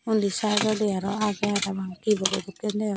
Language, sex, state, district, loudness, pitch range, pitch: Chakma, female, Tripura, Dhalai, -25 LUFS, 195-215 Hz, 205 Hz